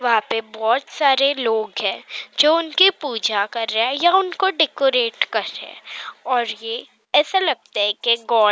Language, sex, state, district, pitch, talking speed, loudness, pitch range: Hindi, female, Maharashtra, Mumbai Suburban, 240 Hz, 170 wpm, -19 LUFS, 225-305 Hz